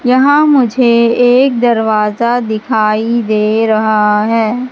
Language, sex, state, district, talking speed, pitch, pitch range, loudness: Hindi, female, Madhya Pradesh, Katni, 100 wpm, 230 Hz, 215-245 Hz, -11 LUFS